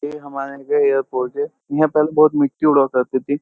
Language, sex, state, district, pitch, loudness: Hindi, male, Uttar Pradesh, Jyotiba Phule Nagar, 150 Hz, -18 LUFS